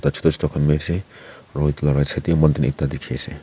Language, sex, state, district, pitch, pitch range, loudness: Nagamese, male, Nagaland, Kohima, 75 Hz, 75-80 Hz, -20 LUFS